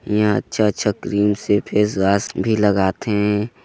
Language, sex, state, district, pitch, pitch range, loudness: Hindi, male, Chhattisgarh, Sarguja, 105 Hz, 100-105 Hz, -19 LUFS